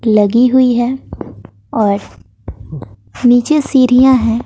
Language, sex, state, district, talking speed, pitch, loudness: Hindi, female, Bihar, West Champaran, 95 wpm, 230 Hz, -12 LUFS